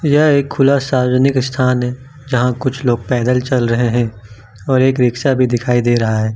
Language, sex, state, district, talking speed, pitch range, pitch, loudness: Hindi, male, Jharkhand, Ranchi, 200 wpm, 120-130 Hz, 125 Hz, -15 LUFS